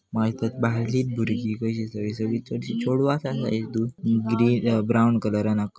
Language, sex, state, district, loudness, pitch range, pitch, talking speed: Konkani, male, Goa, North and South Goa, -24 LUFS, 110-115 Hz, 115 Hz, 175 wpm